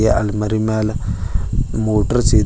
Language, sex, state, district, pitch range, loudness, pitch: Kannada, male, Karnataka, Bidar, 105-110 Hz, -19 LUFS, 110 Hz